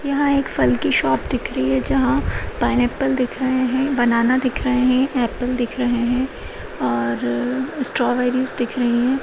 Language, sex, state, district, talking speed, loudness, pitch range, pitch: Kumaoni, female, Uttarakhand, Uttarkashi, 175 wpm, -18 LUFS, 235-265 Hz, 250 Hz